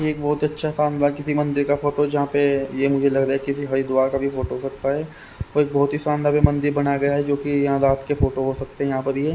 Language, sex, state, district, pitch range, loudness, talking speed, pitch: Hindi, male, Haryana, Rohtak, 135-145 Hz, -21 LUFS, 290 wpm, 140 Hz